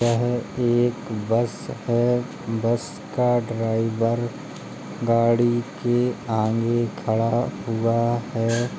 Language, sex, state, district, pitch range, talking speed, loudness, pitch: Hindi, male, Uttar Pradesh, Jalaun, 115-120 Hz, 90 wpm, -23 LUFS, 115 Hz